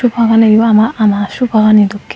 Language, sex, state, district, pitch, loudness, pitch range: Chakma, female, Tripura, Dhalai, 220 Hz, -10 LUFS, 210-225 Hz